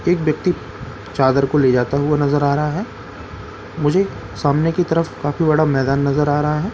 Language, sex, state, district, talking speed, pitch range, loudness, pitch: Hindi, male, Bihar, Katihar, 195 wpm, 135-155 Hz, -18 LUFS, 145 Hz